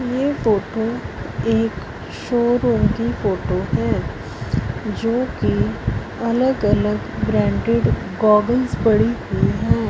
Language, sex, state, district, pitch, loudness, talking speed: Hindi, female, Punjab, Fazilka, 220 Hz, -20 LUFS, 95 wpm